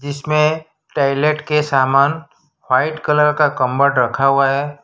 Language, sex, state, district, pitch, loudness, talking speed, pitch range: Hindi, male, Gujarat, Valsad, 145 Hz, -16 LUFS, 135 wpm, 135-150 Hz